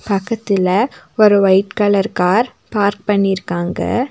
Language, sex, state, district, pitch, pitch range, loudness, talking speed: Tamil, female, Tamil Nadu, Nilgiris, 200 Hz, 190-210 Hz, -16 LUFS, 100 wpm